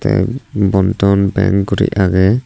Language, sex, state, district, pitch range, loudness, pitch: Chakma, male, Tripura, Unakoti, 95-100 Hz, -14 LUFS, 100 Hz